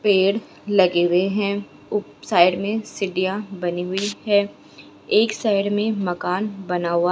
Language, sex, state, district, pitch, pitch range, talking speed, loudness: Hindi, female, Rajasthan, Jaipur, 195 Hz, 180-205 Hz, 150 wpm, -21 LUFS